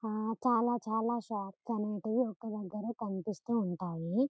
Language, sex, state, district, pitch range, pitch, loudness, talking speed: Telugu, male, Telangana, Karimnagar, 205-230 Hz, 220 Hz, -35 LUFS, 125 wpm